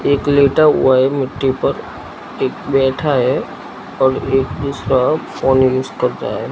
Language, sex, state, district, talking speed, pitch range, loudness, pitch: Hindi, male, Gujarat, Gandhinagar, 145 wpm, 130-140 Hz, -16 LUFS, 135 Hz